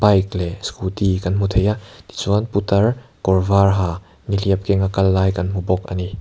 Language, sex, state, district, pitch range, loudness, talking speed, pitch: Mizo, male, Mizoram, Aizawl, 95-100 Hz, -19 LUFS, 205 wpm, 95 Hz